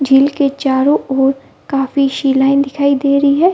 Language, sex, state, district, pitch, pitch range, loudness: Hindi, female, Bihar, Gaya, 275 Hz, 270-280 Hz, -13 LUFS